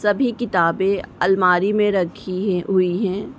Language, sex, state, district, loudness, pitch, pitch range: Hindi, female, Uttar Pradesh, Varanasi, -19 LUFS, 190 Hz, 180-205 Hz